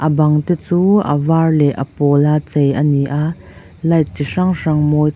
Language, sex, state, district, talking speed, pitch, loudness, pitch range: Mizo, female, Mizoram, Aizawl, 195 wpm, 150 Hz, -15 LUFS, 145-165 Hz